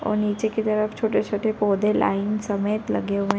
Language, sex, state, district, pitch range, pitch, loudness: Hindi, female, Chhattisgarh, Sarguja, 205-215 Hz, 210 Hz, -23 LUFS